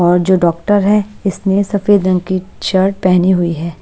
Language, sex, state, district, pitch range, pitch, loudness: Hindi, female, Punjab, Pathankot, 180-200 Hz, 185 Hz, -14 LUFS